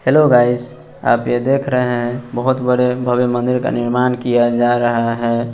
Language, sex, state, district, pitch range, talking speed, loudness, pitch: Hindi, female, Bihar, West Champaran, 120-125 Hz, 185 wpm, -16 LUFS, 125 Hz